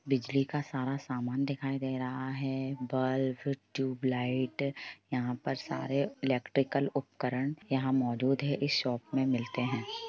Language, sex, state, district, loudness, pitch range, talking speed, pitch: Hindi, female, Jharkhand, Jamtara, -33 LUFS, 125-140 Hz, 135 wpm, 135 Hz